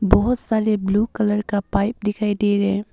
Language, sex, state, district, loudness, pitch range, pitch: Hindi, female, Arunachal Pradesh, Papum Pare, -20 LUFS, 205-215 Hz, 210 Hz